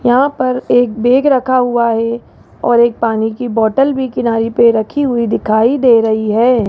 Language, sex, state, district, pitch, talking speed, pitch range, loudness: Hindi, male, Rajasthan, Jaipur, 235 Hz, 190 wpm, 225-255 Hz, -13 LUFS